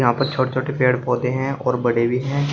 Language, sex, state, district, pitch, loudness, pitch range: Hindi, male, Uttar Pradesh, Shamli, 130 Hz, -20 LUFS, 125-135 Hz